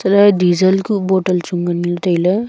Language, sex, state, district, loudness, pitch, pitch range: Wancho, female, Arunachal Pradesh, Longding, -15 LUFS, 185 Hz, 175-195 Hz